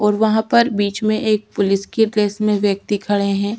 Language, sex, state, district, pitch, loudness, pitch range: Hindi, female, Chhattisgarh, Sukma, 210 Hz, -18 LUFS, 200-215 Hz